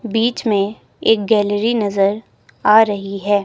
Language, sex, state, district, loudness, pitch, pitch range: Hindi, female, Himachal Pradesh, Shimla, -17 LUFS, 210 Hz, 205-225 Hz